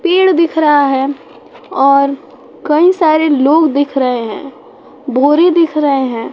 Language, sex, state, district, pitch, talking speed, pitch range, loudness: Hindi, female, Bihar, West Champaran, 290 Hz, 140 wpm, 270-325 Hz, -12 LUFS